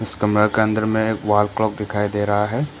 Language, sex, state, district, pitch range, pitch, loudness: Hindi, male, Arunachal Pradesh, Papum Pare, 105-110 Hz, 105 Hz, -19 LUFS